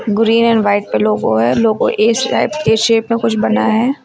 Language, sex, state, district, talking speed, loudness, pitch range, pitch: Hindi, female, Uttar Pradesh, Lucknow, 220 wpm, -13 LUFS, 165-230 Hz, 225 Hz